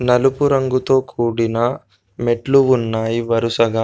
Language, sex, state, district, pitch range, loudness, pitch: Telugu, male, Telangana, Komaram Bheem, 115-130 Hz, -17 LUFS, 120 Hz